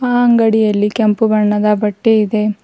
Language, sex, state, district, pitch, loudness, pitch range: Kannada, female, Karnataka, Bidar, 215 Hz, -13 LUFS, 210-225 Hz